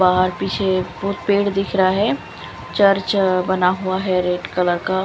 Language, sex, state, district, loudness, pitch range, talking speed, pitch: Hindi, female, Chandigarh, Chandigarh, -19 LUFS, 185-195 Hz, 165 wpm, 190 Hz